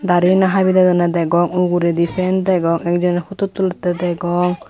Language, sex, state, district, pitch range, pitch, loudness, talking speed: Chakma, female, Tripura, Dhalai, 175-185 Hz, 180 Hz, -16 LUFS, 130 wpm